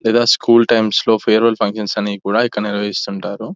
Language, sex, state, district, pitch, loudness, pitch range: Telugu, male, Telangana, Nalgonda, 110 Hz, -15 LUFS, 105-115 Hz